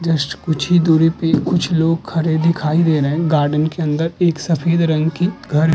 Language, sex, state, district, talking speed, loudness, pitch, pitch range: Hindi, male, Uttar Pradesh, Muzaffarnagar, 220 wpm, -16 LUFS, 165 Hz, 155-170 Hz